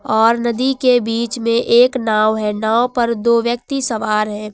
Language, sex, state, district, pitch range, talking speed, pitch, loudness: Hindi, female, Uttar Pradesh, Lucknow, 220-240 Hz, 185 wpm, 235 Hz, -16 LUFS